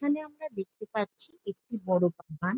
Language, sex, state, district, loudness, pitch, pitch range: Bengali, female, West Bengal, Jalpaiguri, -33 LUFS, 210 Hz, 180-285 Hz